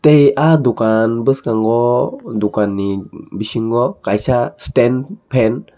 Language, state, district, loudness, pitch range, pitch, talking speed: Kokborok, Tripura, Dhalai, -16 LUFS, 110-130 Hz, 120 Hz, 95 wpm